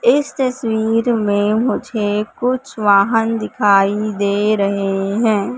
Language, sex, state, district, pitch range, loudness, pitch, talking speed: Hindi, female, Madhya Pradesh, Katni, 205-235 Hz, -16 LUFS, 215 Hz, 105 wpm